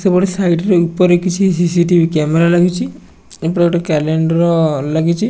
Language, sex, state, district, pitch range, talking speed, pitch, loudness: Odia, male, Odisha, Nuapada, 160-180 Hz, 145 wpm, 170 Hz, -14 LUFS